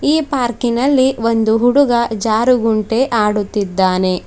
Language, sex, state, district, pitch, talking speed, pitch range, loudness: Kannada, female, Karnataka, Bidar, 230 Hz, 85 wpm, 215-255 Hz, -15 LUFS